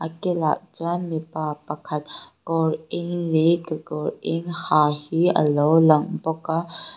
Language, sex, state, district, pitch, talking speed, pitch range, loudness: Mizo, female, Mizoram, Aizawl, 160 Hz, 140 wpm, 155-170 Hz, -23 LUFS